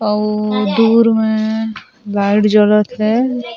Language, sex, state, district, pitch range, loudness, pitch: Chhattisgarhi, female, Chhattisgarh, Sarguja, 210-225 Hz, -14 LUFS, 215 Hz